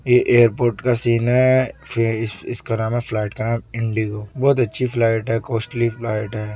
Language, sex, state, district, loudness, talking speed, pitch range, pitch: Hindi, male, Bihar, Kishanganj, -19 LUFS, 190 wpm, 110-125 Hz, 115 Hz